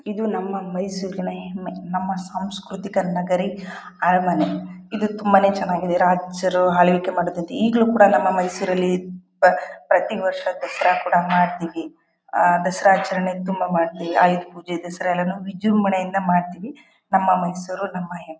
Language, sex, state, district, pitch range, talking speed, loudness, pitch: Kannada, female, Karnataka, Mysore, 180-195 Hz, 125 wpm, -21 LUFS, 185 Hz